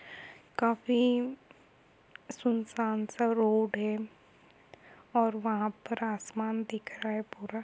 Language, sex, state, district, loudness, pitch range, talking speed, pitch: Hindi, female, Jharkhand, Jamtara, -32 LUFS, 215-235 Hz, 100 wpm, 225 Hz